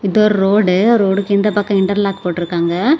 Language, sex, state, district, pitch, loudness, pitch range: Tamil, female, Tamil Nadu, Kanyakumari, 200 Hz, -14 LUFS, 190-210 Hz